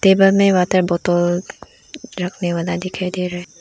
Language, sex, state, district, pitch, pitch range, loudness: Hindi, female, Arunachal Pradesh, Lower Dibang Valley, 180 Hz, 175-195 Hz, -18 LUFS